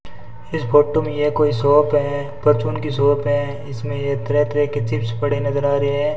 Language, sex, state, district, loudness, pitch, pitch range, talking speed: Hindi, male, Rajasthan, Bikaner, -19 LUFS, 145 Hz, 120-145 Hz, 215 wpm